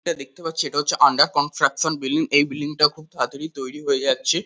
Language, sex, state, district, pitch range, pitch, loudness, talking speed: Bengali, male, West Bengal, Kolkata, 145-160 Hz, 150 Hz, -21 LUFS, 240 wpm